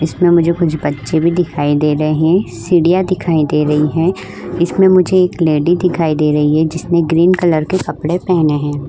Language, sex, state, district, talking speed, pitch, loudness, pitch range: Hindi, female, Uttar Pradesh, Varanasi, 195 wpm, 165 Hz, -13 LUFS, 150-180 Hz